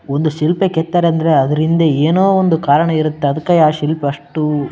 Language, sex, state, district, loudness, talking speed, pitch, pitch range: Kannada, male, Karnataka, Bellary, -14 LUFS, 190 wpm, 155 Hz, 145-165 Hz